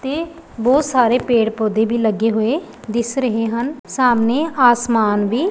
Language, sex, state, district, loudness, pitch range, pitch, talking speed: Punjabi, female, Punjab, Pathankot, -17 LUFS, 225-270 Hz, 240 Hz, 155 wpm